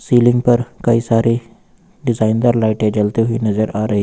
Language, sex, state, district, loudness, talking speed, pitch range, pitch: Hindi, male, Uttar Pradesh, Lucknow, -16 LUFS, 165 wpm, 110-120 Hz, 115 Hz